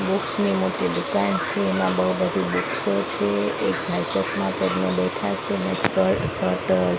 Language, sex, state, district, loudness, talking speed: Gujarati, female, Maharashtra, Mumbai Suburban, -22 LUFS, 180 wpm